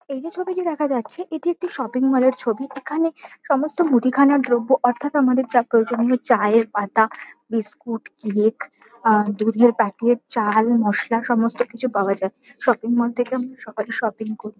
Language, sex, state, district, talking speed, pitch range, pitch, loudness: Bengali, female, West Bengal, Kolkata, 150 wpm, 225-270 Hz, 240 Hz, -20 LUFS